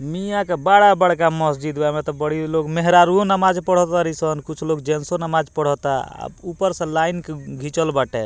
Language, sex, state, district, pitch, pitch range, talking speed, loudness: Bhojpuri, male, Bihar, Muzaffarpur, 160 Hz, 150-175 Hz, 190 wpm, -19 LUFS